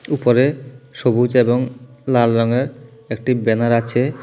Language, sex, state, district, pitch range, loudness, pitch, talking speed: Bengali, male, Tripura, South Tripura, 120-130 Hz, -17 LUFS, 125 Hz, 115 wpm